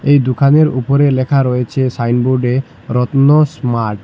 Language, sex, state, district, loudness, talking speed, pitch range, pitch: Bengali, male, Assam, Hailakandi, -13 LUFS, 135 wpm, 125-140 Hz, 130 Hz